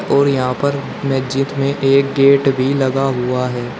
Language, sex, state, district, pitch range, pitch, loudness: Hindi, male, Uttar Pradesh, Shamli, 130-140 Hz, 135 Hz, -16 LUFS